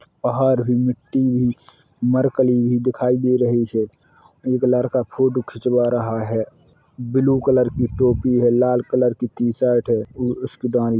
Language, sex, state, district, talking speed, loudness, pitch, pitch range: Hindi, male, Uttar Pradesh, Hamirpur, 180 wpm, -19 LUFS, 125 Hz, 120-130 Hz